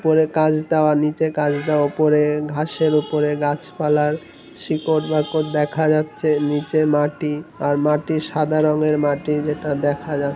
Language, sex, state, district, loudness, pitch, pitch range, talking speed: Bengali, male, West Bengal, North 24 Parganas, -19 LUFS, 150 Hz, 150-155 Hz, 145 wpm